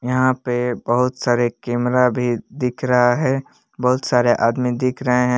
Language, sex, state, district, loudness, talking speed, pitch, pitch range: Hindi, male, Jharkhand, Palamu, -19 LUFS, 165 wpm, 125 Hz, 120-125 Hz